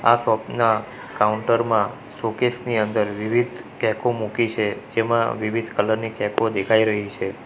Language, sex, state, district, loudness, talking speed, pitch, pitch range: Gujarati, male, Gujarat, Valsad, -22 LUFS, 160 wpm, 110 Hz, 105-115 Hz